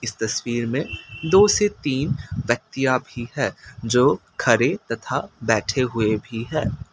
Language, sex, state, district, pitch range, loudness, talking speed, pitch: Hindi, male, Assam, Kamrup Metropolitan, 115-140 Hz, -22 LUFS, 130 wpm, 120 Hz